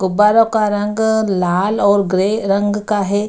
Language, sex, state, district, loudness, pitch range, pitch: Hindi, female, Bihar, Kishanganj, -15 LUFS, 195-215 Hz, 205 Hz